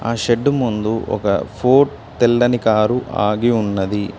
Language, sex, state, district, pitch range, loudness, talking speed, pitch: Telugu, male, Telangana, Mahabubabad, 105-125 Hz, -17 LUFS, 130 wpm, 115 Hz